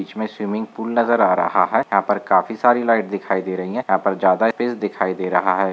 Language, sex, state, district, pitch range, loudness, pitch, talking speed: Hindi, male, Andhra Pradesh, Visakhapatnam, 95-115 Hz, -19 LUFS, 105 Hz, 250 wpm